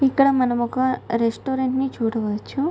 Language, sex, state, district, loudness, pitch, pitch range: Telugu, female, Andhra Pradesh, Guntur, -22 LUFS, 255 Hz, 235-270 Hz